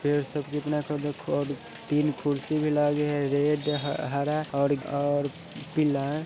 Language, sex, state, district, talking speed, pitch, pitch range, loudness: Hindi, male, Bihar, Sitamarhi, 240 wpm, 145 Hz, 145-150 Hz, -28 LUFS